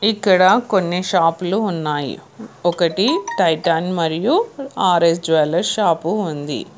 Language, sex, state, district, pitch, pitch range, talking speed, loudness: Telugu, female, Telangana, Hyderabad, 175 Hz, 165-210 Hz, 95 wpm, -17 LUFS